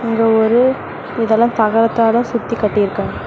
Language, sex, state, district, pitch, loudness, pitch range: Tamil, female, Tamil Nadu, Namakkal, 225 Hz, -15 LUFS, 220-235 Hz